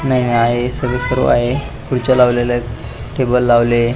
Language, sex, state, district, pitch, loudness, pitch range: Marathi, male, Maharashtra, Pune, 120 Hz, -15 LUFS, 120-125 Hz